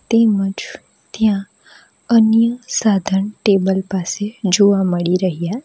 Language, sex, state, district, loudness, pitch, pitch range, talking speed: Gujarati, female, Gujarat, Valsad, -16 LUFS, 200 Hz, 190-220 Hz, 105 wpm